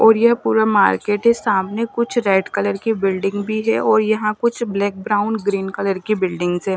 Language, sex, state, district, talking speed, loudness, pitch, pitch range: Hindi, male, Punjab, Fazilka, 205 wpm, -18 LUFS, 210 Hz, 195-225 Hz